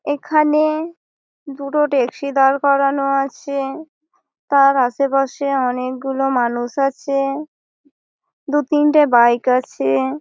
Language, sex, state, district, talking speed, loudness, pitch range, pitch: Bengali, female, West Bengal, Malda, 100 wpm, -17 LUFS, 270-295 Hz, 275 Hz